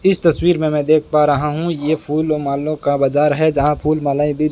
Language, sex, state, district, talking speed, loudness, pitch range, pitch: Hindi, male, Rajasthan, Bikaner, 250 wpm, -16 LUFS, 145-155 Hz, 150 Hz